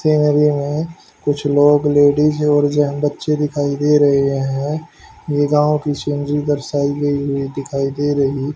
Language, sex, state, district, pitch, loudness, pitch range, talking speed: Hindi, male, Haryana, Jhajjar, 145 Hz, -17 LUFS, 140-150 Hz, 145 wpm